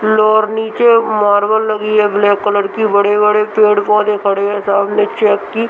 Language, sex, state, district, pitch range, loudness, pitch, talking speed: Hindi, female, Bihar, Muzaffarpur, 205-215 Hz, -12 LUFS, 210 Hz, 170 wpm